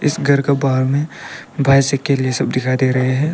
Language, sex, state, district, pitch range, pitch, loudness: Hindi, male, Arunachal Pradesh, Papum Pare, 130-140 Hz, 135 Hz, -16 LUFS